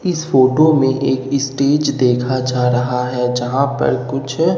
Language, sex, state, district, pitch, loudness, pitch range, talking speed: Hindi, male, Bihar, Katihar, 135 Hz, -16 LUFS, 125-140 Hz, 155 wpm